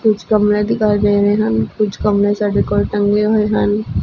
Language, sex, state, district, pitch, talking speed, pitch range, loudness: Punjabi, female, Punjab, Fazilka, 205 Hz, 210 wpm, 205-210 Hz, -15 LUFS